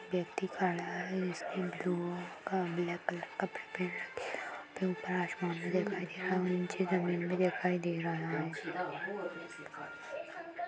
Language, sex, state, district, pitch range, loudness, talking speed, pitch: Hindi, female, Uttar Pradesh, Jalaun, 175-185 Hz, -37 LUFS, 125 wpm, 180 Hz